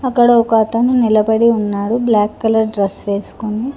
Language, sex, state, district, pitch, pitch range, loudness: Telugu, female, Telangana, Hyderabad, 220 Hz, 210-235 Hz, -14 LUFS